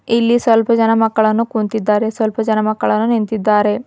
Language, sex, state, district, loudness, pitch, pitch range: Kannada, female, Karnataka, Bidar, -15 LUFS, 220 Hz, 215-230 Hz